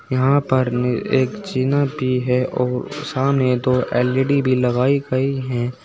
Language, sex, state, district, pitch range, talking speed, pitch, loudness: Hindi, male, Uttar Pradesh, Saharanpur, 125-135 Hz, 145 wpm, 130 Hz, -19 LUFS